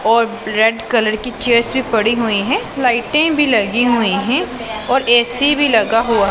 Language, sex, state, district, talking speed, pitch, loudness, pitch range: Hindi, female, Punjab, Pathankot, 180 wpm, 235 Hz, -15 LUFS, 220-250 Hz